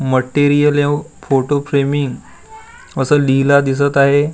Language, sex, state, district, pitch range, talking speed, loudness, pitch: Marathi, male, Maharashtra, Gondia, 135-145 Hz, 95 wpm, -14 LUFS, 145 Hz